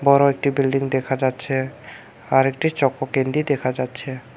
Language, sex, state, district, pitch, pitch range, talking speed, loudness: Bengali, male, Tripura, Unakoti, 135 Hz, 130-140 Hz, 150 wpm, -21 LUFS